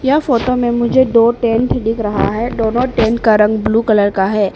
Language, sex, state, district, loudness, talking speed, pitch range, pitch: Hindi, female, Arunachal Pradesh, Papum Pare, -14 LUFS, 225 wpm, 215-245 Hz, 230 Hz